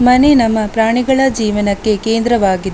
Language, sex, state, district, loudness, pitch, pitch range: Kannada, female, Karnataka, Dakshina Kannada, -13 LUFS, 225 Hz, 210-245 Hz